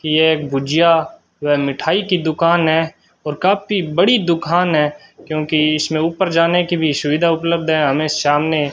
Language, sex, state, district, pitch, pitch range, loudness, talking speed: Hindi, male, Rajasthan, Bikaner, 160 Hz, 150-170 Hz, -16 LUFS, 165 wpm